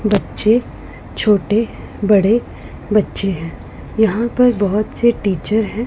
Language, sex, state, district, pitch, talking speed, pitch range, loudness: Hindi, female, Punjab, Pathankot, 215 Hz, 110 wpm, 200-230 Hz, -16 LUFS